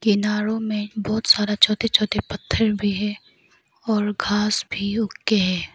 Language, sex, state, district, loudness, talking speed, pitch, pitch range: Hindi, female, Arunachal Pradesh, Lower Dibang Valley, -21 LUFS, 155 wpm, 210 Hz, 205-215 Hz